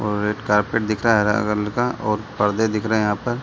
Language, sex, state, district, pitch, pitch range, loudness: Hindi, male, Bihar, Sitamarhi, 105 Hz, 105-110 Hz, -20 LUFS